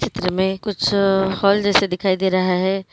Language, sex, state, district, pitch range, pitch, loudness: Hindi, female, Maharashtra, Dhule, 185-200 Hz, 190 Hz, -18 LUFS